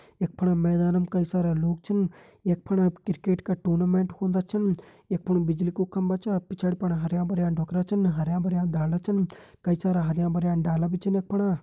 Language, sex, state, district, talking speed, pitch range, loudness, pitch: Hindi, male, Uttarakhand, Uttarkashi, 205 wpm, 175-190 Hz, -26 LUFS, 180 Hz